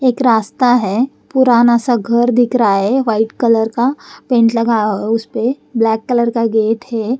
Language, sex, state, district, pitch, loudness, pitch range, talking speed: Hindi, female, Bihar, West Champaran, 235 Hz, -14 LUFS, 225-245 Hz, 190 wpm